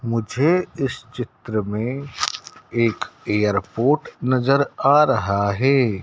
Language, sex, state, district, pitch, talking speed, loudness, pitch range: Hindi, male, Madhya Pradesh, Dhar, 125 Hz, 100 wpm, -21 LUFS, 110-135 Hz